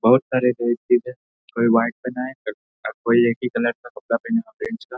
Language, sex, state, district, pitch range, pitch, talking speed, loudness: Hindi, male, Bihar, Darbhanga, 120-130 Hz, 125 Hz, 215 wpm, -21 LUFS